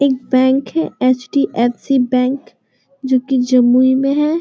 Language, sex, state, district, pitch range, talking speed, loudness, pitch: Hindi, female, Bihar, Jamui, 255-275 Hz, 135 wpm, -15 LUFS, 260 Hz